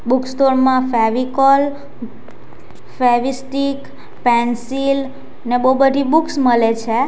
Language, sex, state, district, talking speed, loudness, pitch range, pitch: Gujarati, female, Gujarat, Valsad, 100 wpm, -16 LUFS, 240-275 Hz, 260 Hz